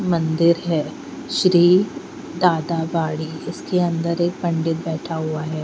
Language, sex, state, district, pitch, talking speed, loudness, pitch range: Hindi, female, Bihar, Patna, 170 Hz, 115 wpm, -20 LUFS, 160-180 Hz